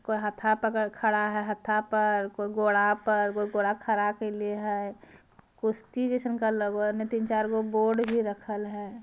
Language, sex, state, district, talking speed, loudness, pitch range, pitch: Magahi, female, Bihar, Jamui, 185 wpm, -28 LUFS, 205-220 Hz, 215 Hz